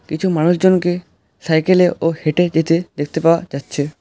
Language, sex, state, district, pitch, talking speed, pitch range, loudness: Bengali, male, West Bengal, Alipurduar, 165 Hz, 150 wpm, 155-175 Hz, -16 LUFS